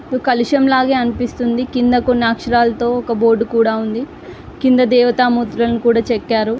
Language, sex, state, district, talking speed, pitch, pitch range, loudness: Telugu, female, Andhra Pradesh, Guntur, 110 wpm, 240 Hz, 230-250 Hz, -15 LUFS